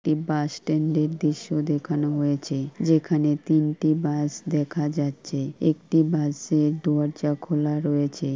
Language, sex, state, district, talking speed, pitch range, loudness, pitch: Bengali, female, West Bengal, Purulia, 135 wpm, 145-155 Hz, -24 LUFS, 150 Hz